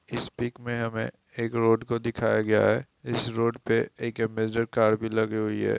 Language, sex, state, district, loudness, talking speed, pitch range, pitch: Hindi, female, Bihar, East Champaran, -27 LUFS, 205 wpm, 110-115 Hz, 115 Hz